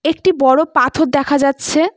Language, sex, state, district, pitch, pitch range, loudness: Bengali, female, West Bengal, Cooch Behar, 300 Hz, 280-320 Hz, -14 LUFS